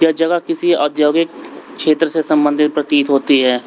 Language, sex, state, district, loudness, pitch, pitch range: Hindi, male, Uttar Pradesh, Lalitpur, -15 LUFS, 155 Hz, 145-165 Hz